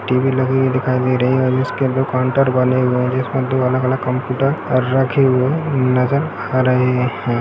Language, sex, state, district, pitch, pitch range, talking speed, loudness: Hindi, male, Bihar, Gaya, 130 Hz, 125-130 Hz, 200 wpm, -17 LUFS